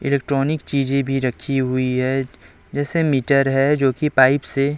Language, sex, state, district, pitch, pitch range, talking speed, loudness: Hindi, male, Chhattisgarh, Raipur, 135 Hz, 135-145 Hz, 150 wpm, -19 LUFS